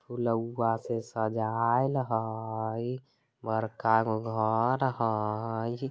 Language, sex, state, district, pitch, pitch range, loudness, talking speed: Bajjika, male, Bihar, Vaishali, 115 Hz, 110-120 Hz, -30 LUFS, 70 wpm